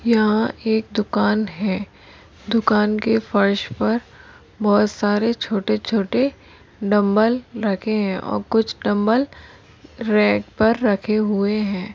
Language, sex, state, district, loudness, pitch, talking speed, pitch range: Hindi, female, Maharashtra, Solapur, -20 LUFS, 215 Hz, 110 wpm, 205-225 Hz